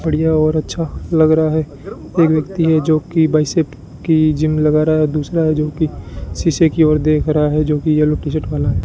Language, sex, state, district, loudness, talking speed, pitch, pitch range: Hindi, male, Rajasthan, Bikaner, -15 LUFS, 210 wpm, 155 Hz, 150-160 Hz